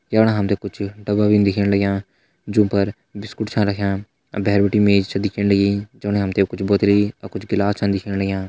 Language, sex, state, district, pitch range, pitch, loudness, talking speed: Hindi, male, Uttarakhand, Tehri Garhwal, 100-105 Hz, 100 Hz, -19 LUFS, 205 wpm